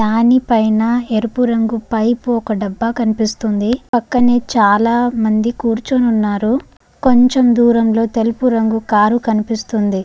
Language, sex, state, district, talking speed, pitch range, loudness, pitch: Telugu, female, Andhra Pradesh, Guntur, 120 wpm, 220-240 Hz, -15 LUFS, 230 Hz